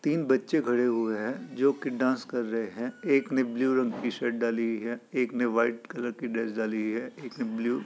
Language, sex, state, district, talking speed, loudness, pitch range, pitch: Hindi, male, Uttar Pradesh, Hamirpur, 250 wpm, -29 LUFS, 115-130 Hz, 120 Hz